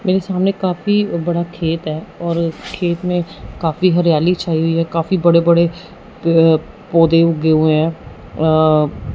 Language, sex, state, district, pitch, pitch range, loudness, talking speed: Hindi, male, Punjab, Fazilka, 170 Hz, 160-175 Hz, -16 LUFS, 130 wpm